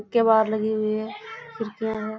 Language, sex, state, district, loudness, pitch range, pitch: Hindi, female, Bihar, Kishanganj, -24 LUFS, 215-225 Hz, 220 Hz